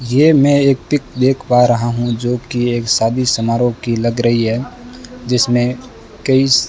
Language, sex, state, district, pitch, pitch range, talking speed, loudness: Hindi, male, Rajasthan, Bikaner, 125 Hz, 120-135 Hz, 180 wpm, -15 LUFS